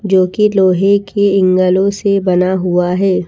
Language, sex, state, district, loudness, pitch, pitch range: Hindi, female, Madhya Pradesh, Bhopal, -12 LUFS, 190 Hz, 185-200 Hz